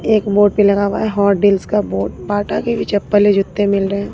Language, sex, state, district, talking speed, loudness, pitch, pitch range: Hindi, female, Bihar, Katihar, 260 wpm, -15 LUFS, 205 Hz, 200-205 Hz